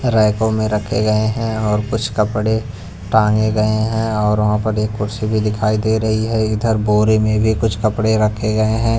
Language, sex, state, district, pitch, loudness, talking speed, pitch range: Hindi, male, Punjab, Pathankot, 110 Hz, -17 LUFS, 200 wpm, 105-110 Hz